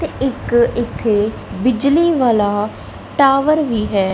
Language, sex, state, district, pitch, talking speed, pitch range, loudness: Punjabi, female, Punjab, Kapurthala, 240 Hz, 115 wpm, 215-275 Hz, -16 LUFS